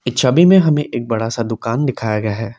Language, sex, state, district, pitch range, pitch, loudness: Hindi, male, Assam, Kamrup Metropolitan, 115-140 Hz, 120 Hz, -16 LUFS